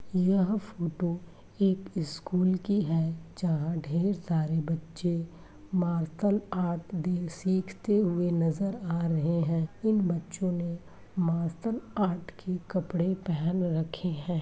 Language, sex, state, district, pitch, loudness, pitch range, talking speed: Hindi, female, Uttar Pradesh, Jalaun, 175 Hz, -30 LUFS, 165-185 Hz, 115 wpm